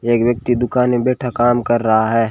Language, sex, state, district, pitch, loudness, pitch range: Hindi, male, Rajasthan, Bikaner, 120 Hz, -16 LUFS, 115-125 Hz